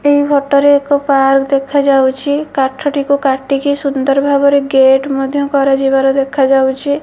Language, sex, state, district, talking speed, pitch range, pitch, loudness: Odia, female, Odisha, Malkangiri, 135 wpm, 270-285 Hz, 275 Hz, -12 LUFS